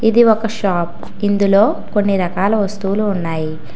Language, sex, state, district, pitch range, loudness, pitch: Telugu, female, Telangana, Hyderabad, 185-215 Hz, -16 LUFS, 200 Hz